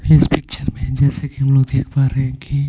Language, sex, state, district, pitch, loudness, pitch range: Hindi, male, Punjab, Pathankot, 135 Hz, -17 LUFS, 135-140 Hz